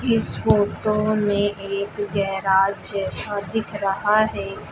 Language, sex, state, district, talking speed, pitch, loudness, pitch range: Hindi, female, Uttar Pradesh, Lucknow, 115 wpm, 205 Hz, -22 LUFS, 200-215 Hz